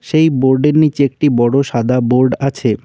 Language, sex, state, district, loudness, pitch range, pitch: Bengali, male, West Bengal, Cooch Behar, -13 LUFS, 125-145 Hz, 130 Hz